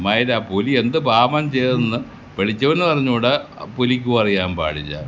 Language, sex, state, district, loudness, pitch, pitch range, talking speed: Malayalam, male, Kerala, Kasaragod, -18 LUFS, 120 Hz, 100-125 Hz, 105 wpm